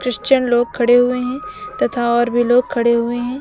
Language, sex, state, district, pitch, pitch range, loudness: Hindi, female, Uttar Pradesh, Lucknow, 245 Hz, 240-250 Hz, -16 LUFS